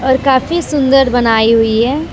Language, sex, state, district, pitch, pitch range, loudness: Hindi, female, Jharkhand, Deoghar, 260 Hz, 230-275 Hz, -12 LUFS